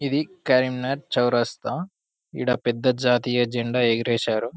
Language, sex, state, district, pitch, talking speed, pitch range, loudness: Telugu, male, Telangana, Karimnagar, 125 Hz, 105 wpm, 120-135 Hz, -23 LUFS